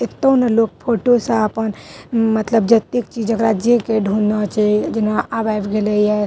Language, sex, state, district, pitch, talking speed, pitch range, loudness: Maithili, female, Bihar, Madhepura, 220 Hz, 190 wpm, 210-230 Hz, -17 LUFS